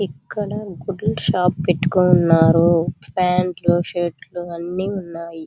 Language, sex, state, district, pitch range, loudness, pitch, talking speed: Telugu, female, Andhra Pradesh, Chittoor, 165-185 Hz, -19 LUFS, 175 Hz, 100 wpm